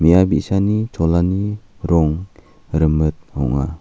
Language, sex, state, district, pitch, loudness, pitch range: Garo, male, Meghalaya, South Garo Hills, 85 Hz, -18 LUFS, 80-95 Hz